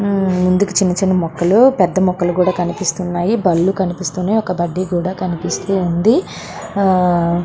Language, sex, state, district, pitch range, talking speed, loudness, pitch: Telugu, female, Andhra Pradesh, Srikakulam, 175-190 Hz, 155 wpm, -16 LUFS, 185 Hz